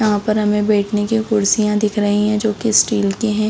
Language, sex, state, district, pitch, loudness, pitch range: Hindi, female, Bihar, Samastipur, 210 Hz, -16 LUFS, 210-215 Hz